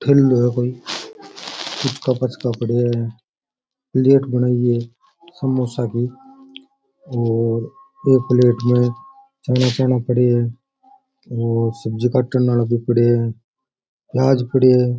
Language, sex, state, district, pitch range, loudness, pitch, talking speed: Rajasthani, male, Rajasthan, Churu, 120-135 Hz, -18 LUFS, 125 Hz, 110 wpm